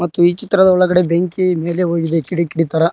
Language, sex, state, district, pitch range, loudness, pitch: Kannada, male, Karnataka, Koppal, 170-185 Hz, -15 LUFS, 175 Hz